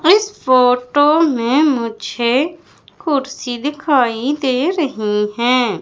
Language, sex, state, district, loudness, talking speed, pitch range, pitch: Hindi, female, Madhya Pradesh, Umaria, -16 LUFS, 95 wpm, 240-300 Hz, 265 Hz